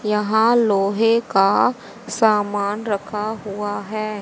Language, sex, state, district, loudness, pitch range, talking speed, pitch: Hindi, female, Haryana, Charkhi Dadri, -19 LUFS, 205-220 Hz, 100 wpm, 210 Hz